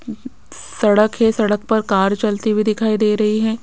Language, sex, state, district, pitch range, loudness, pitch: Hindi, female, Rajasthan, Jaipur, 210-225 Hz, -17 LUFS, 215 Hz